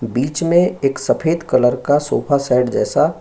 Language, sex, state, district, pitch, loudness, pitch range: Hindi, male, Uttar Pradesh, Jyotiba Phule Nagar, 140 Hz, -17 LUFS, 125-160 Hz